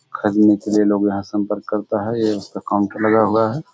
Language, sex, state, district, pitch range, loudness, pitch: Hindi, male, Bihar, Samastipur, 105-110 Hz, -18 LUFS, 105 Hz